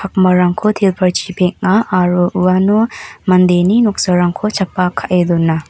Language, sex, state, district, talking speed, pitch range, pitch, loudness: Garo, female, Meghalaya, North Garo Hills, 105 wpm, 180-195 Hz, 185 Hz, -13 LUFS